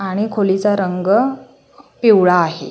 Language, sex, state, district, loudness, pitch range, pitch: Marathi, female, Maharashtra, Solapur, -15 LUFS, 180-210 Hz, 195 Hz